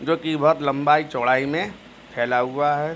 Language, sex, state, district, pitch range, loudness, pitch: Hindi, male, Uttar Pradesh, Jalaun, 140-160 Hz, -21 LUFS, 150 Hz